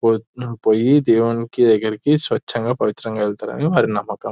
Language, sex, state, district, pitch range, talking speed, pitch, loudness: Telugu, male, Telangana, Nalgonda, 110-120 Hz, 110 wpm, 115 Hz, -18 LUFS